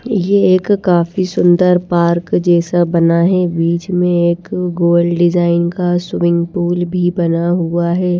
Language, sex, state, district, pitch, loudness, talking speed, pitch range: Hindi, female, Chhattisgarh, Raipur, 175 Hz, -14 LUFS, 145 wpm, 170-180 Hz